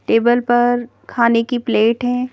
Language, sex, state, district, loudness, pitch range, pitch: Hindi, female, Madhya Pradesh, Bhopal, -16 LUFS, 230-245 Hz, 240 Hz